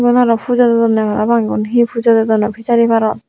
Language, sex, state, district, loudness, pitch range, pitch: Chakma, female, Tripura, Unakoti, -13 LUFS, 220-235 Hz, 230 Hz